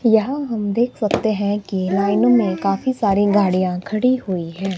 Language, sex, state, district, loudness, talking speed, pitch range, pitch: Hindi, male, Himachal Pradesh, Shimla, -19 LUFS, 175 wpm, 195-235 Hz, 205 Hz